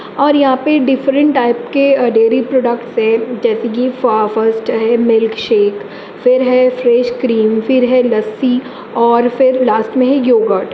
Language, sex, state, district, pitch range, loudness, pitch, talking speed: Hindi, female, Jharkhand, Jamtara, 230-265 Hz, -13 LUFS, 250 Hz, 130 wpm